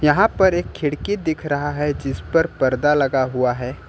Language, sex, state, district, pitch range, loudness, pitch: Hindi, male, Jharkhand, Ranchi, 135-165 Hz, -20 LUFS, 145 Hz